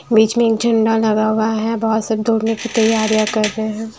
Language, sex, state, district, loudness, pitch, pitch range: Hindi, female, Maharashtra, Washim, -16 LUFS, 220 Hz, 220-225 Hz